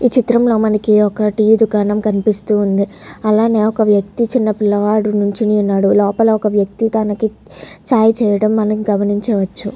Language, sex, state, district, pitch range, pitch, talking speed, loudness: Telugu, female, Andhra Pradesh, Guntur, 205-220 Hz, 215 Hz, 130 wpm, -14 LUFS